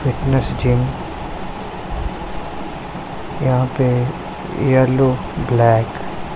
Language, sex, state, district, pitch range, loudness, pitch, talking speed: Hindi, male, Punjab, Pathankot, 125-135 Hz, -19 LUFS, 130 Hz, 65 wpm